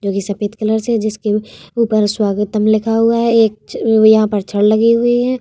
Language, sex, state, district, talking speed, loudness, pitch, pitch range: Hindi, female, Bihar, Vaishali, 220 wpm, -14 LUFS, 215 Hz, 210-230 Hz